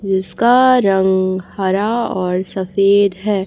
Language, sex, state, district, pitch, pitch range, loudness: Hindi, female, Chhattisgarh, Raipur, 195 Hz, 190-205 Hz, -15 LUFS